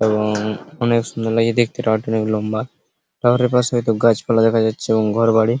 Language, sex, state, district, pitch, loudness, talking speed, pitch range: Bengali, male, West Bengal, Purulia, 115 Hz, -18 LUFS, 195 wpm, 110-120 Hz